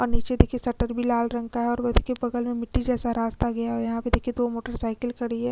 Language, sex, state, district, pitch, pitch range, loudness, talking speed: Hindi, female, Chhattisgarh, Kabirdham, 240 Hz, 235-245 Hz, -26 LUFS, 305 wpm